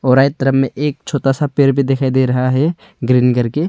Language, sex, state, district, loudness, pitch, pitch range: Hindi, male, Arunachal Pradesh, Longding, -15 LUFS, 135 Hz, 130-145 Hz